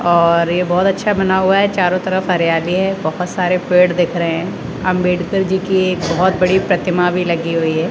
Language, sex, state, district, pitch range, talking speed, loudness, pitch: Hindi, male, Rajasthan, Jaipur, 175-190 Hz, 210 wpm, -15 LUFS, 180 Hz